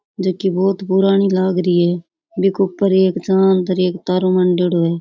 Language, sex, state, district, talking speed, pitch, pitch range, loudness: Rajasthani, female, Rajasthan, Churu, 205 wpm, 185 Hz, 180-195 Hz, -16 LUFS